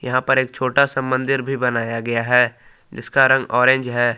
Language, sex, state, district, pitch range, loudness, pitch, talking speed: Hindi, male, Jharkhand, Palamu, 120-130 Hz, -18 LUFS, 130 Hz, 215 wpm